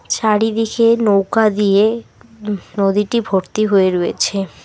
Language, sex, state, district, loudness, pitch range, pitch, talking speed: Bengali, female, West Bengal, Alipurduar, -16 LUFS, 195-225 Hz, 210 Hz, 105 wpm